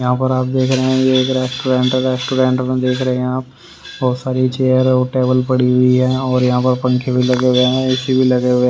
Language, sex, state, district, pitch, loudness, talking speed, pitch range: Hindi, male, Haryana, Rohtak, 130 Hz, -15 LUFS, 250 wpm, 125-130 Hz